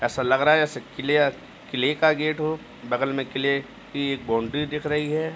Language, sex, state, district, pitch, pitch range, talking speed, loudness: Hindi, male, Uttar Pradesh, Jalaun, 140 Hz, 130-150 Hz, 210 wpm, -24 LUFS